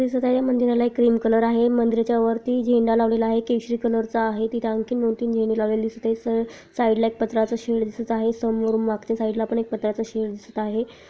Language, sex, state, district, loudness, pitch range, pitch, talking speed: Marathi, female, Maharashtra, Chandrapur, -22 LUFS, 225-235 Hz, 230 Hz, 205 wpm